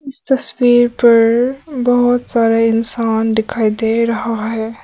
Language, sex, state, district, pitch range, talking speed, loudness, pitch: Hindi, female, Arunachal Pradesh, Papum Pare, 225-245 Hz, 125 wpm, -14 LUFS, 230 Hz